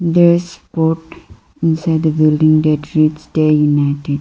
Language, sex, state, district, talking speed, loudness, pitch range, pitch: English, female, Arunachal Pradesh, Lower Dibang Valley, 140 wpm, -14 LUFS, 155-165 Hz, 155 Hz